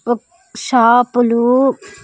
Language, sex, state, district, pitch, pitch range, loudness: Telugu, female, Andhra Pradesh, Sri Satya Sai, 245 Hz, 235-260 Hz, -14 LUFS